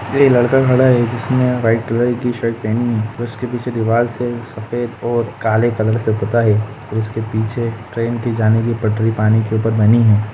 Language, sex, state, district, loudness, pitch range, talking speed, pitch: Hindi, male, Jharkhand, Jamtara, -16 LUFS, 110-120 Hz, 205 wpm, 115 Hz